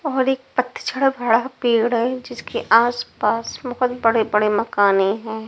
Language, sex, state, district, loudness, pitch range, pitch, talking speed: Hindi, female, Punjab, Pathankot, -19 LUFS, 220-250 Hz, 235 Hz, 130 wpm